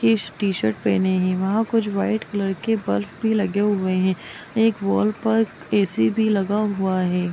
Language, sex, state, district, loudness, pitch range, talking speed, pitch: Magahi, female, Bihar, Gaya, -21 LUFS, 185-215 Hz, 180 wpm, 200 Hz